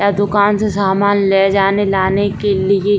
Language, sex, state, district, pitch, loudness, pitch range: Hindi, female, Bihar, Saran, 200 Hz, -14 LUFS, 195-205 Hz